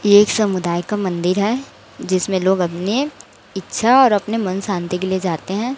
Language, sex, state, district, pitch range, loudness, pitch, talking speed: Hindi, female, Chhattisgarh, Raipur, 185-215 Hz, -18 LUFS, 195 Hz, 175 wpm